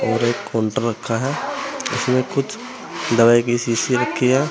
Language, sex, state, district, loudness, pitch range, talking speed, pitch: Hindi, male, Uttar Pradesh, Saharanpur, -19 LUFS, 115-130 Hz, 160 wpm, 120 Hz